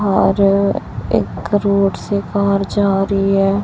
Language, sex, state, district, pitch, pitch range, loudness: Hindi, female, Chhattisgarh, Raipur, 200 Hz, 195-200 Hz, -16 LUFS